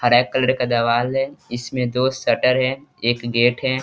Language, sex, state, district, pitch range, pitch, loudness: Hindi, male, Bihar, East Champaran, 120-130 Hz, 125 Hz, -20 LUFS